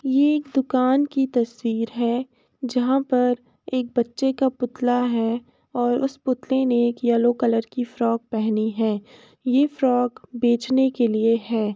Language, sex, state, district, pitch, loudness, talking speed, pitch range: Hindi, female, Uttar Pradesh, Jalaun, 245 Hz, -22 LUFS, 155 wpm, 235-260 Hz